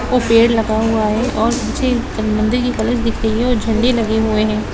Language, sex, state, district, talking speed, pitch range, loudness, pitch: Hindi, female, Bihar, Gopalganj, 225 wpm, 220-245 Hz, -16 LUFS, 225 Hz